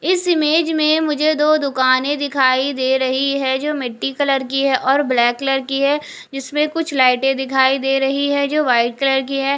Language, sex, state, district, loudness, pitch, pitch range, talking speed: Hindi, female, Odisha, Khordha, -17 LUFS, 275 Hz, 265-295 Hz, 200 wpm